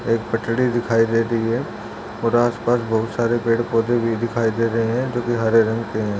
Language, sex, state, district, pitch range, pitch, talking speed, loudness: Hindi, male, Chhattisgarh, Rajnandgaon, 115-120 Hz, 115 Hz, 215 wpm, -20 LUFS